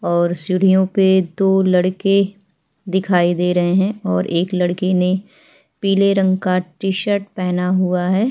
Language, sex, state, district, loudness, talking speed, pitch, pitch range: Hindi, female, Chhattisgarh, Sukma, -17 LUFS, 145 wpm, 185 Hz, 180-195 Hz